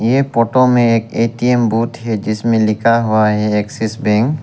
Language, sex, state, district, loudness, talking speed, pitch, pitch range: Hindi, male, Arunachal Pradesh, Lower Dibang Valley, -14 LUFS, 190 wpm, 115 Hz, 110-120 Hz